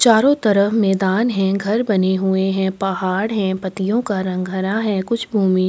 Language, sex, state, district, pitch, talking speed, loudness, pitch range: Hindi, female, Chhattisgarh, Sukma, 195 Hz, 190 wpm, -18 LUFS, 190-215 Hz